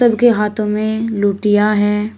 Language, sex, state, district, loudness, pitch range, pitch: Hindi, female, Uttar Pradesh, Shamli, -15 LUFS, 210-220 Hz, 210 Hz